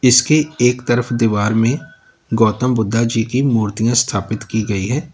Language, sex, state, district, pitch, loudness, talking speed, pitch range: Hindi, male, Uttar Pradesh, Lalitpur, 115 Hz, -16 LUFS, 165 wpm, 110-125 Hz